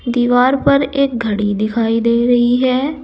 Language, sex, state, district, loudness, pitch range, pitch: Hindi, female, Uttar Pradesh, Saharanpur, -14 LUFS, 230-265 Hz, 245 Hz